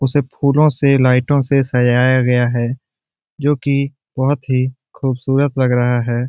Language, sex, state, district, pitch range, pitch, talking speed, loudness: Hindi, male, Bihar, Jamui, 125-140 Hz, 130 Hz, 160 wpm, -16 LUFS